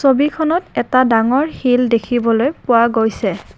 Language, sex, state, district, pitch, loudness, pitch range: Assamese, female, Assam, Kamrup Metropolitan, 250 Hz, -15 LUFS, 230-275 Hz